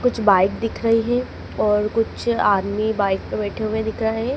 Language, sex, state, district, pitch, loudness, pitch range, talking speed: Hindi, female, Madhya Pradesh, Dhar, 220 Hz, -20 LUFS, 205-230 Hz, 205 wpm